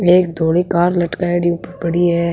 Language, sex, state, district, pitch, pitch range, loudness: Rajasthani, female, Rajasthan, Nagaur, 175 Hz, 170-175 Hz, -16 LUFS